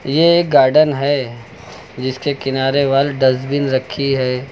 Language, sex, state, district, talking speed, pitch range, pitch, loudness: Hindi, male, Uttar Pradesh, Lucknow, 130 wpm, 130-145 Hz, 135 Hz, -15 LUFS